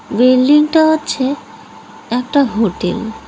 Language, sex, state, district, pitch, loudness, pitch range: Bengali, female, West Bengal, Cooch Behar, 255 Hz, -14 LUFS, 225-295 Hz